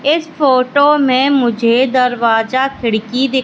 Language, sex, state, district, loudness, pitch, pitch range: Hindi, female, Madhya Pradesh, Katni, -13 LUFS, 260 Hz, 240-275 Hz